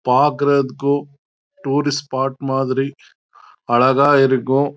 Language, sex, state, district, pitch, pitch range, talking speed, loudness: Tamil, male, Karnataka, Chamarajanagar, 140 Hz, 135-145 Hz, 75 wpm, -17 LUFS